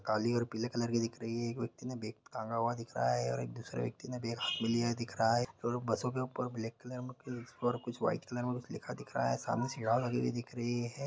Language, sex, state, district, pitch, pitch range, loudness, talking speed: Maithili, male, Bihar, Madhepura, 120 Hz, 115-125 Hz, -36 LUFS, 285 wpm